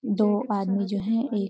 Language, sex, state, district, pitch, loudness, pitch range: Hindi, female, Uttarakhand, Uttarkashi, 205 Hz, -25 LUFS, 200-215 Hz